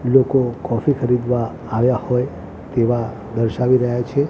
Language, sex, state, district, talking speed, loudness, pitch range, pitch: Gujarati, male, Gujarat, Gandhinagar, 125 wpm, -19 LUFS, 115-130 Hz, 125 Hz